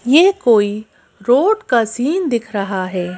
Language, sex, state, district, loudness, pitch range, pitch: Hindi, female, Madhya Pradesh, Bhopal, -16 LUFS, 205-280 Hz, 230 Hz